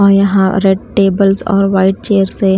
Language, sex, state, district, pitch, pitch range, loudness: Hindi, female, Himachal Pradesh, Shimla, 195 Hz, 195-200 Hz, -12 LUFS